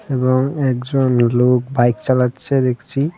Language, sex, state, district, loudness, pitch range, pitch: Bengali, male, Tripura, West Tripura, -17 LUFS, 125-135 Hz, 130 Hz